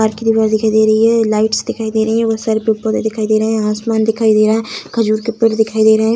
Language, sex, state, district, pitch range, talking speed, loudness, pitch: Hindi, female, Bihar, Samastipur, 220-225 Hz, 300 wpm, -14 LUFS, 220 Hz